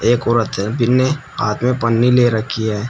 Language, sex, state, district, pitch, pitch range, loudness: Hindi, male, Uttar Pradesh, Shamli, 120 Hz, 110-125 Hz, -16 LUFS